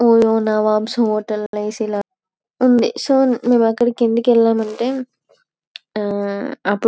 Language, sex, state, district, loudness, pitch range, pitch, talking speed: Telugu, female, Telangana, Karimnagar, -17 LUFS, 215-245 Hz, 225 Hz, 130 wpm